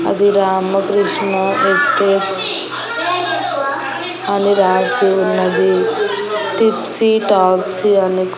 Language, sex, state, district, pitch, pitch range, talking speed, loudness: Telugu, female, Andhra Pradesh, Annamaya, 195 Hz, 185-205 Hz, 70 wpm, -15 LUFS